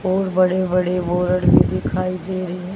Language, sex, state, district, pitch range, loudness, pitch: Hindi, female, Haryana, Charkhi Dadri, 180-185 Hz, -19 LUFS, 180 Hz